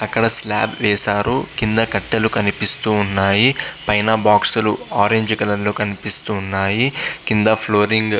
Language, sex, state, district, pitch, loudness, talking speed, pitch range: Telugu, male, Andhra Pradesh, Visakhapatnam, 105 Hz, -15 LUFS, 115 wpm, 105-110 Hz